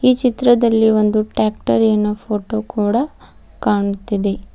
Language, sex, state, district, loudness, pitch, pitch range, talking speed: Kannada, female, Karnataka, Bidar, -17 LUFS, 215 Hz, 210-235 Hz, 80 wpm